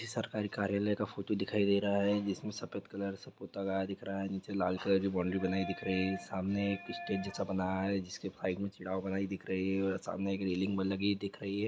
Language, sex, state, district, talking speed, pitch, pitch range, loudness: Hindi, male, Bihar, East Champaran, 245 wpm, 100 Hz, 95-100 Hz, -35 LUFS